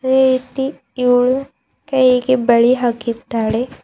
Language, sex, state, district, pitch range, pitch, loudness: Kannada, female, Karnataka, Bidar, 240-260 Hz, 255 Hz, -16 LUFS